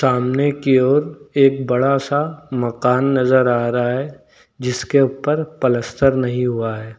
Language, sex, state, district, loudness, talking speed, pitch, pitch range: Hindi, male, Uttar Pradesh, Lucknow, -18 LUFS, 145 wpm, 130 Hz, 125-140 Hz